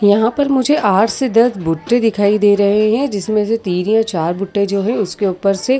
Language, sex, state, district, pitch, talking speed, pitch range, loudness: Hindi, female, Uttar Pradesh, Jyotiba Phule Nagar, 210 Hz, 240 wpm, 195-230 Hz, -15 LUFS